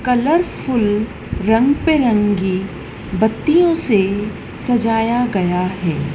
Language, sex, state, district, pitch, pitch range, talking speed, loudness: Hindi, female, Madhya Pradesh, Dhar, 220 Hz, 195-250 Hz, 80 wpm, -17 LUFS